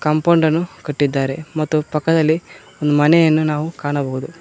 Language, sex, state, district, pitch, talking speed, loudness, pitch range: Kannada, male, Karnataka, Koppal, 155 Hz, 110 wpm, -17 LUFS, 145-165 Hz